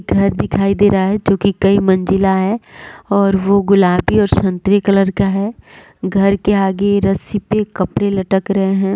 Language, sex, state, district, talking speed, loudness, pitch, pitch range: Hindi, female, Bihar, Sitamarhi, 180 wpm, -14 LUFS, 195 Hz, 195-200 Hz